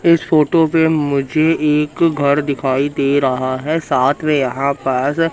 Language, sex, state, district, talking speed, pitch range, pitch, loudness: Hindi, male, Madhya Pradesh, Katni, 160 wpm, 140-160 Hz, 145 Hz, -16 LUFS